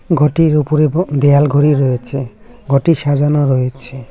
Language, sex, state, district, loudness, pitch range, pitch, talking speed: Bengali, male, West Bengal, Cooch Behar, -13 LUFS, 135-150 Hz, 145 Hz, 130 wpm